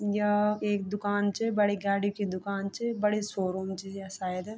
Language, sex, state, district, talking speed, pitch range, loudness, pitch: Garhwali, female, Uttarakhand, Tehri Garhwal, 185 wpm, 195-210 Hz, -30 LUFS, 205 Hz